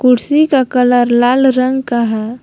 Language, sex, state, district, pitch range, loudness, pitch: Hindi, female, Jharkhand, Palamu, 240-265 Hz, -12 LUFS, 250 Hz